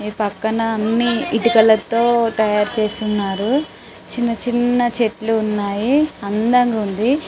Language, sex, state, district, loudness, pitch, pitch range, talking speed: Telugu, female, Telangana, Karimnagar, -18 LUFS, 225 Hz, 215-240 Hz, 115 wpm